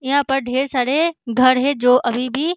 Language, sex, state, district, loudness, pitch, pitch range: Hindi, female, Bihar, Gaya, -17 LUFS, 265 Hz, 250-285 Hz